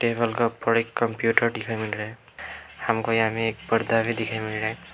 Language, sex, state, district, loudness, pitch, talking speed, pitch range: Hindi, male, Arunachal Pradesh, Lower Dibang Valley, -25 LUFS, 115 Hz, 220 wpm, 110-115 Hz